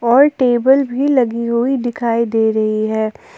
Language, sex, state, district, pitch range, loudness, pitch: Hindi, female, Jharkhand, Palamu, 225-265 Hz, -15 LUFS, 240 Hz